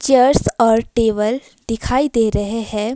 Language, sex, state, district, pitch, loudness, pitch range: Hindi, female, Himachal Pradesh, Shimla, 230 Hz, -17 LUFS, 220-255 Hz